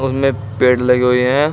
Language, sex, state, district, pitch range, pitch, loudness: Hindi, male, Uttar Pradesh, Shamli, 125-135 Hz, 125 Hz, -14 LUFS